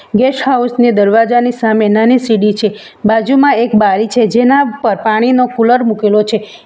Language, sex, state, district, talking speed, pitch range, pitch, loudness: Gujarati, female, Gujarat, Valsad, 160 wpm, 215-245 Hz, 225 Hz, -11 LUFS